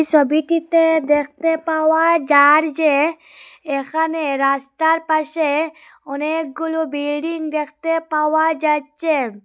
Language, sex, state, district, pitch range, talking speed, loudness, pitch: Bengali, female, Assam, Hailakandi, 295-320 Hz, 85 wpm, -18 LUFS, 315 Hz